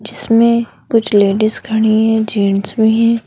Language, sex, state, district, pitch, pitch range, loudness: Hindi, female, Madhya Pradesh, Bhopal, 220 Hz, 205-230 Hz, -13 LUFS